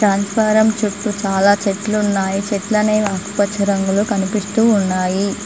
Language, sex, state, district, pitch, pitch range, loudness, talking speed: Telugu, female, Telangana, Mahabubabad, 200 Hz, 195-210 Hz, -17 LUFS, 100 wpm